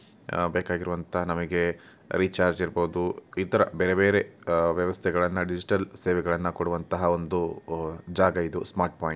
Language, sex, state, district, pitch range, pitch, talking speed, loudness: Kannada, male, Karnataka, Mysore, 85-90 Hz, 90 Hz, 120 wpm, -27 LUFS